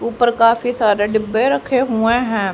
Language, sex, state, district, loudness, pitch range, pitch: Hindi, female, Haryana, Rohtak, -16 LUFS, 220-245 Hz, 230 Hz